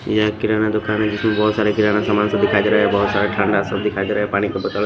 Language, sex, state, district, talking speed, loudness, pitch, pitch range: Hindi, male, Maharashtra, Washim, 295 wpm, -18 LUFS, 105 Hz, 100-105 Hz